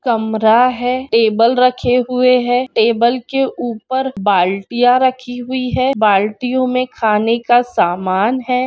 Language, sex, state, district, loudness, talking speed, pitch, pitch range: Hindi, female, Andhra Pradesh, Anantapur, -15 LUFS, 130 wpm, 245 Hz, 220-255 Hz